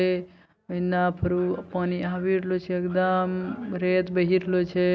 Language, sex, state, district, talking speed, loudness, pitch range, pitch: Maithili, male, Bihar, Bhagalpur, 135 wpm, -26 LUFS, 180-185 Hz, 180 Hz